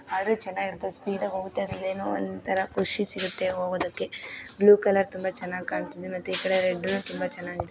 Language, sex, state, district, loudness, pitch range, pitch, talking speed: Kannada, female, Karnataka, Belgaum, -27 LUFS, 185-195 Hz, 190 Hz, 155 wpm